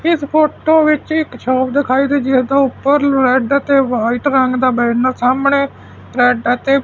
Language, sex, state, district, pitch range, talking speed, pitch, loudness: Punjabi, male, Punjab, Fazilka, 255-285 Hz, 200 wpm, 270 Hz, -14 LUFS